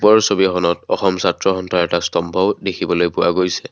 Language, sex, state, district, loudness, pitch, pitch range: Assamese, male, Assam, Kamrup Metropolitan, -17 LUFS, 90 Hz, 85-95 Hz